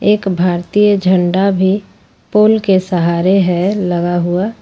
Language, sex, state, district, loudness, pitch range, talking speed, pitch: Hindi, female, Jharkhand, Ranchi, -13 LUFS, 175-205 Hz, 130 wpm, 190 Hz